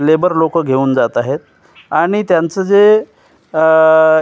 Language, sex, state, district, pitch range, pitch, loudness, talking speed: Marathi, male, Maharashtra, Gondia, 160-190 Hz, 160 Hz, -12 LUFS, 140 wpm